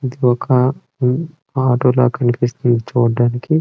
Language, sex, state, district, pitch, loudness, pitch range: Telugu, male, Andhra Pradesh, Srikakulam, 125 Hz, -16 LUFS, 120-130 Hz